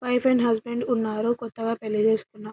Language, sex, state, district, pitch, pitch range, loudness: Telugu, female, Telangana, Karimnagar, 230 Hz, 220-240 Hz, -25 LUFS